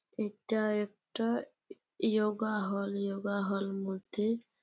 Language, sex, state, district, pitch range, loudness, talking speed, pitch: Bengali, female, West Bengal, Jalpaiguri, 200-220 Hz, -34 LUFS, 115 wpm, 210 Hz